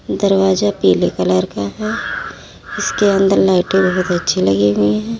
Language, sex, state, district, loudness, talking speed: Hindi, female, Uttar Pradesh, Lalitpur, -15 LUFS, 150 wpm